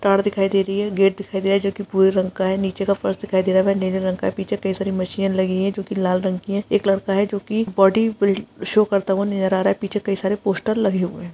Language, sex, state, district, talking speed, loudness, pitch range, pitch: Hindi, female, Bihar, Araria, 310 wpm, -20 LUFS, 190-200 Hz, 195 Hz